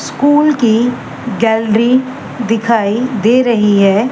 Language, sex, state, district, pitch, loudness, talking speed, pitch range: Hindi, female, Haryana, Rohtak, 230 Hz, -12 LUFS, 100 wpm, 220-250 Hz